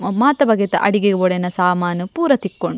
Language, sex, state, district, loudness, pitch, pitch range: Tulu, female, Karnataka, Dakshina Kannada, -17 LUFS, 195 Hz, 180-230 Hz